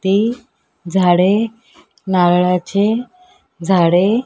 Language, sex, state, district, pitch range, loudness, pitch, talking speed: Marathi, female, Maharashtra, Mumbai Suburban, 180-225 Hz, -15 LUFS, 190 Hz, 70 wpm